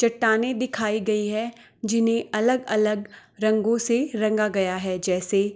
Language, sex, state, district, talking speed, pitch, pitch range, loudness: Hindi, female, Bihar, Gopalganj, 130 wpm, 215 Hz, 210-230 Hz, -24 LUFS